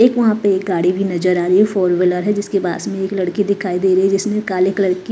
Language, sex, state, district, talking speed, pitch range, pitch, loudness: Hindi, female, Chhattisgarh, Raipur, 290 wpm, 180-205 Hz, 190 Hz, -16 LUFS